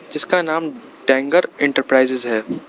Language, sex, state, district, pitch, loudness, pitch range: Hindi, male, Arunachal Pradesh, Lower Dibang Valley, 135 Hz, -18 LUFS, 130-160 Hz